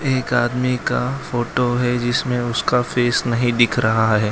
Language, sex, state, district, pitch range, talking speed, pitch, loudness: Hindi, male, Gujarat, Valsad, 120-125 Hz, 165 wpm, 120 Hz, -19 LUFS